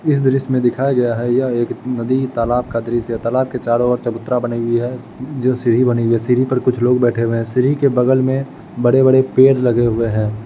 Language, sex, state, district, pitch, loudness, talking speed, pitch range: Hindi, male, Bihar, Jahanabad, 125 Hz, -16 LUFS, 240 wpm, 120-130 Hz